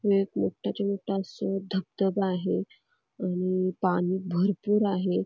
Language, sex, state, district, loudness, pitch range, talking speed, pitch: Marathi, female, Karnataka, Belgaum, -28 LUFS, 185-200 Hz, 115 wpm, 195 Hz